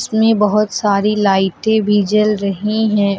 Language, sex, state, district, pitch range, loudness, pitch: Hindi, female, Uttar Pradesh, Lucknow, 200-215 Hz, -15 LUFS, 210 Hz